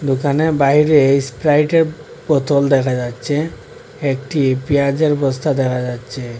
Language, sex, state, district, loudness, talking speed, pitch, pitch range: Bengali, male, Assam, Hailakandi, -16 LUFS, 105 wpm, 140 Hz, 130-150 Hz